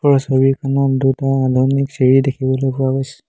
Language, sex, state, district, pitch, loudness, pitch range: Assamese, male, Assam, Hailakandi, 135 Hz, -16 LUFS, 130-135 Hz